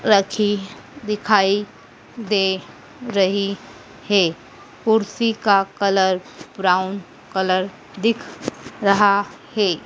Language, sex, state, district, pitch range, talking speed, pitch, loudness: Hindi, female, Madhya Pradesh, Dhar, 190-210 Hz, 80 wpm, 200 Hz, -20 LUFS